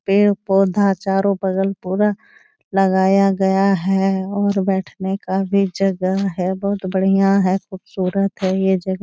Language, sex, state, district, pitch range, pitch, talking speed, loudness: Hindi, female, Bihar, Jahanabad, 190-195 Hz, 195 Hz, 140 wpm, -18 LUFS